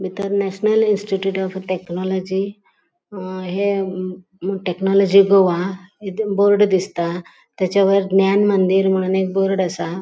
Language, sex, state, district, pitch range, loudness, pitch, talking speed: Konkani, female, Goa, North and South Goa, 185-200 Hz, -18 LUFS, 190 Hz, 125 wpm